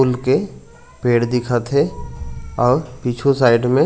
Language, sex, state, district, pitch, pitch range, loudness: Chhattisgarhi, male, Chhattisgarh, Raigarh, 125 Hz, 115-130 Hz, -18 LUFS